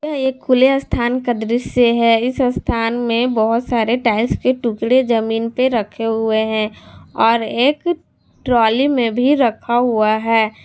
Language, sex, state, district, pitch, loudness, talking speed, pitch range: Hindi, female, Jharkhand, Garhwa, 235 Hz, -16 LUFS, 160 wpm, 225-255 Hz